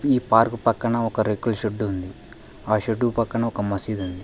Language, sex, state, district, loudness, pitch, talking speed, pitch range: Telugu, male, Telangana, Hyderabad, -23 LUFS, 110 Hz, 185 wpm, 105-115 Hz